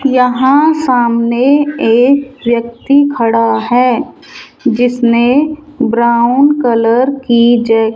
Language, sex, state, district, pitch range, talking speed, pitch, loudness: Hindi, male, Rajasthan, Jaipur, 235-275 Hz, 90 wpm, 245 Hz, -11 LUFS